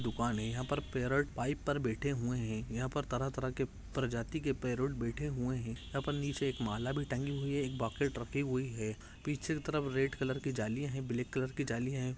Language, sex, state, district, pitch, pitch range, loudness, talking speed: Hindi, male, Jharkhand, Sahebganj, 130 Hz, 120-140 Hz, -37 LUFS, 235 wpm